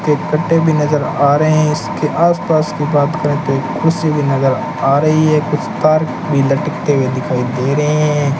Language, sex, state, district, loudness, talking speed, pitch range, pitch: Hindi, male, Rajasthan, Bikaner, -14 LUFS, 200 wpm, 140-155 Hz, 150 Hz